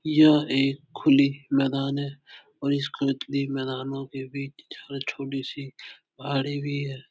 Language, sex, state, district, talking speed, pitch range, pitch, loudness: Hindi, male, Uttar Pradesh, Etah, 145 wpm, 135-140 Hz, 140 Hz, -26 LUFS